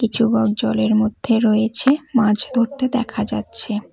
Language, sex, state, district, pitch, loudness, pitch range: Bengali, female, West Bengal, Cooch Behar, 225 Hz, -18 LUFS, 210-240 Hz